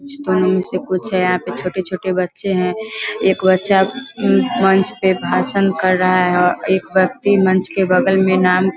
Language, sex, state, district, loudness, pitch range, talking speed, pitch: Hindi, female, Bihar, Vaishali, -16 LUFS, 185-195 Hz, 170 wpm, 185 Hz